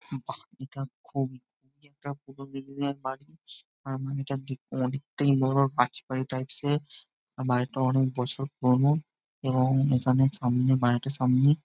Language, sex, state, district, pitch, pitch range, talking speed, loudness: Bengali, male, West Bengal, Jhargram, 135 Hz, 130-140 Hz, 125 wpm, -28 LUFS